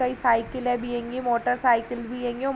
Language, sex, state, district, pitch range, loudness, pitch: Hindi, female, Uttar Pradesh, Varanasi, 240-250 Hz, -25 LUFS, 245 Hz